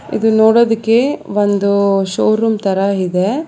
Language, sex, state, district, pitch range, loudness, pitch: Kannada, female, Karnataka, Bangalore, 200-225 Hz, -14 LUFS, 205 Hz